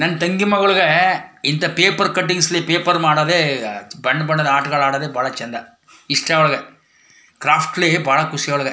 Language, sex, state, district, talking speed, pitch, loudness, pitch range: Kannada, male, Karnataka, Chamarajanagar, 135 wpm, 155 Hz, -16 LUFS, 140-175 Hz